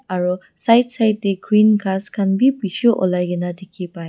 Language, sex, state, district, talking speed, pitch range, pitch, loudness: Nagamese, female, Nagaland, Dimapur, 205 wpm, 180-215 Hz, 195 Hz, -18 LUFS